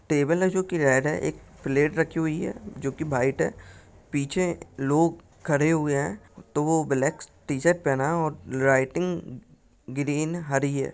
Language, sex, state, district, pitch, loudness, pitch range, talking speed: Hindi, male, Maharashtra, Pune, 145 Hz, -25 LUFS, 135-165 Hz, 160 wpm